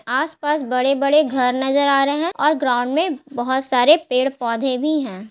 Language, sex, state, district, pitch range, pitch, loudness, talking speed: Hindi, female, Bihar, Gaya, 255-300 Hz, 270 Hz, -18 LUFS, 145 wpm